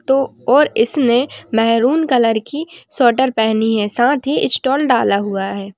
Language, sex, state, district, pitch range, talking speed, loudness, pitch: Hindi, female, Bihar, Bhagalpur, 220-270 Hz, 155 wpm, -15 LUFS, 240 Hz